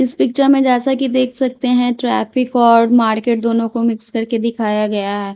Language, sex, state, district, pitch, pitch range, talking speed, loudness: Hindi, female, Bihar, Patna, 235 Hz, 230-255 Hz, 200 wpm, -15 LUFS